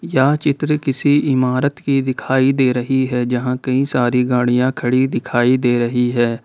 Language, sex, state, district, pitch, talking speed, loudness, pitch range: Hindi, male, Jharkhand, Ranchi, 130 Hz, 165 wpm, -17 LUFS, 125-135 Hz